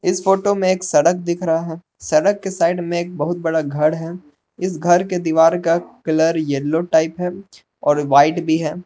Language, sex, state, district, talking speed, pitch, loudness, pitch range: Hindi, male, Jharkhand, Palamu, 205 wpm, 165 Hz, -18 LUFS, 160-180 Hz